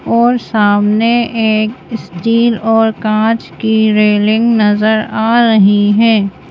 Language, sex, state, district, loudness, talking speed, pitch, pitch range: Hindi, female, Madhya Pradesh, Bhopal, -11 LUFS, 110 wpm, 220 Hz, 210-230 Hz